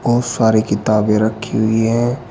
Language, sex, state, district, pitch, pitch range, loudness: Hindi, male, Uttar Pradesh, Shamli, 110 Hz, 110-120 Hz, -16 LUFS